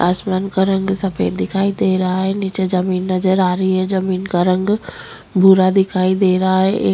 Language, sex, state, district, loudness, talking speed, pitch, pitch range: Rajasthani, female, Rajasthan, Nagaur, -16 LUFS, 180 wpm, 190 Hz, 185-195 Hz